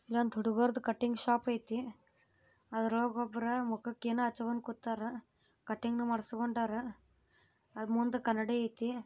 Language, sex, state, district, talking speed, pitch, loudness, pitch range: Kannada, female, Karnataka, Bijapur, 100 wpm, 235 Hz, -35 LUFS, 230-240 Hz